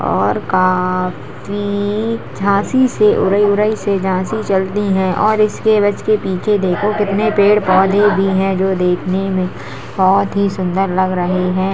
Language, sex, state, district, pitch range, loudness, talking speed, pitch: Hindi, female, Uttar Pradesh, Jalaun, 185-210 Hz, -15 LUFS, 155 wpm, 195 Hz